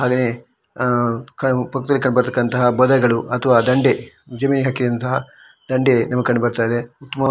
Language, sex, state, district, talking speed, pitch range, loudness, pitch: Kannada, male, Karnataka, Shimoga, 105 wpm, 120-130 Hz, -18 LUFS, 125 Hz